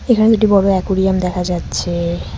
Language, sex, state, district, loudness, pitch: Bengali, female, West Bengal, Cooch Behar, -15 LUFS, 185 Hz